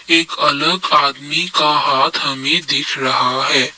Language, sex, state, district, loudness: Hindi, male, Assam, Kamrup Metropolitan, -15 LUFS